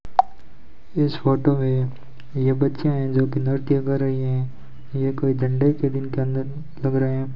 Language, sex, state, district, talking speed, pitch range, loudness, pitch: Hindi, male, Rajasthan, Bikaner, 180 wpm, 130-140 Hz, -23 LUFS, 135 Hz